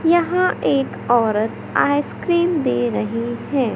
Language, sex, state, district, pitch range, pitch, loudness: Hindi, male, Madhya Pradesh, Katni, 225-340 Hz, 270 Hz, -19 LUFS